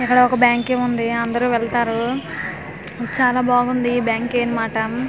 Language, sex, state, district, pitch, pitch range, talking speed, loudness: Telugu, female, Andhra Pradesh, Manyam, 240 Hz, 230-245 Hz, 115 wpm, -19 LUFS